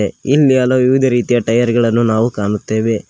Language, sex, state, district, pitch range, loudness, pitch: Kannada, male, Karnataka, Koppal, 110-130 Hz, -14 LUFS, 120 Hz